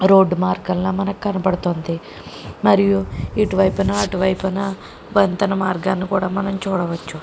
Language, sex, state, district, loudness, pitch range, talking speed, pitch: Telugu, female, Andhra Pradesh, Krishna, -19 LUFS, 170-195 Hz, 90 wpm, 185 Hz